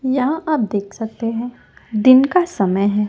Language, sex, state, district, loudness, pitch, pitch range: Hindi, female, Madhya Pradesh, Umaria, -17 LUFS, 230 Hz, 210-265 Hz